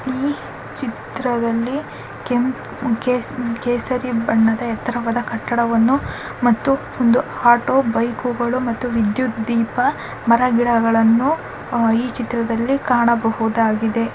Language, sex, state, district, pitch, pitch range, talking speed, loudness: Kannada, female, Karnataka, Mysore, 240 Hz, 230-250 Hz, 90 wpm, -19 LUFS